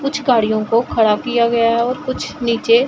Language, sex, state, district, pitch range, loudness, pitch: Hindi, female, Punjab, Pathankot, 230-255 Hz, -16 LUFS, 235 Hz